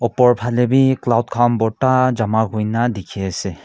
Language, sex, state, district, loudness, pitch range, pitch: Nagamese, male, Nagaland, Kohima, -17 LUFS, 110-125 Hz, 120 Hz